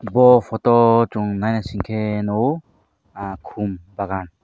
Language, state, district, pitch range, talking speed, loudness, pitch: Kokborok, Tripura, Dhalai, 100-115 Hz, 135 wpm, -19 LUFS, 105 Hz